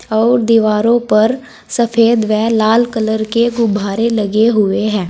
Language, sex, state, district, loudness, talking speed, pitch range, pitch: Hindi, female, Uttar Pradesh, Saharanpur, -13 LUFS, 140 wpm, 215-235 Hz, 225 Hz